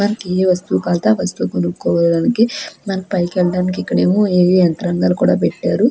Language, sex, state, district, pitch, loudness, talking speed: Telugu, female, Andhra Pradesh, Krishna, 180 Hz, -16 LUFS, 150 wpm